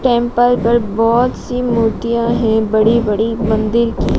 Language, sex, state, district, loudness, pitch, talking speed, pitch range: Hindi, female, Madhya Pradesh, Dhar, -15 LUFS, 235 Hz, 145 wpm, 220-240 Hz